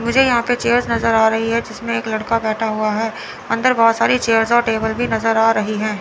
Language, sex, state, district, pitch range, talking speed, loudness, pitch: Hindi, female, Chandigarh, Chandigarh, 220-235 Hz, 250 wpm, -17 LUFS, 225 Hz